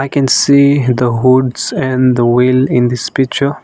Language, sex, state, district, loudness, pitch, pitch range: English, male, Nagaland, Dimapur, -11 LUFS, 130 Hz, 125-140 Hz